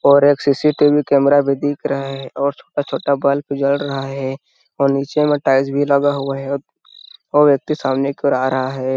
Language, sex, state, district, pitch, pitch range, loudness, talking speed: Hindi, male, Chhattisgarh, Sarguja, 140 Hz, 135-145 Hz, -17 LUFS, 220 wpm